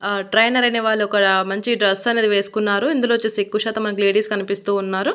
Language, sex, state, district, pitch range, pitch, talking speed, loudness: Telugu, female, Andhra Pradesh, Annamaya, 200-225 Hz, 210 Hz, 200 wpm, -18 LUFS